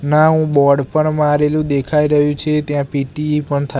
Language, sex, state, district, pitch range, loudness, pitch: Gujarati, male, Gujarat, Gandhinagar, 140-150 Hz, -15 LUFS, 150 Hz